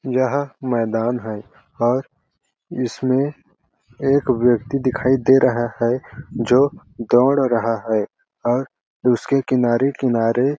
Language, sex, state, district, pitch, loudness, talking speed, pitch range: Hindi, male, Chhattisgarh, Balrampur, 125 Hz, -19 LUFS, 100 wpm, 120-135 Hz